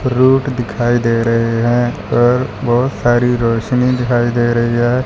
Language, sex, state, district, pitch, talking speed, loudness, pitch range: Hindi, male, Punjab, Fazilka, 120 Hz, 155 wpm, -14 LUFS, 120-125 Hz